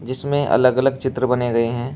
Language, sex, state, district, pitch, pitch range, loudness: Hindi, male, Uttar Pradesh, Shamli, 130 Hz, 120-135 Hz, -19 LUFS